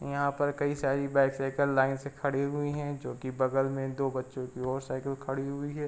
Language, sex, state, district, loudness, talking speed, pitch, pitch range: Hindi, male, Uttar Pradesh, Varanasi, -31 LUFS, 225 wpm, 135 Hz, 135-140 Hz